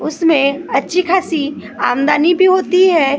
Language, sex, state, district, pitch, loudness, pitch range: Hindi, female, Maharashtra, Gondia, 325 Hz, -14 LUFS, 290-365 Hz